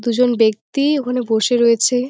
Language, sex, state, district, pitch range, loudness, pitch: Bengali, female, West Bengal, Jalpaiguri, 230-250 Hz, -16 LUFS, 245 Hz